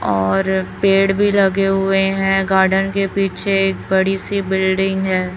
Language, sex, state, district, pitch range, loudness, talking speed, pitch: Hindi, female, Chhattisgarh, Raipur, 190-195 Hz, -16 LUFS, 155 wpm, 195 Hz